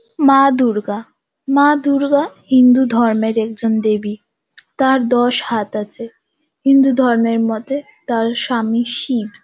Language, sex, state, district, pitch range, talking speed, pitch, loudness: Bengali, female, West Bengal, Kolkata, 225-275 Hz, 115 wpm, 240 Hz, -15 LUFS